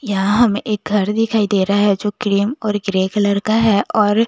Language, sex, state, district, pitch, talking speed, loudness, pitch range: Hindi, female, Chandigarh, Chandigarh, 205 Hz, 225 wpm, -16 LUFS, 200-215 Hz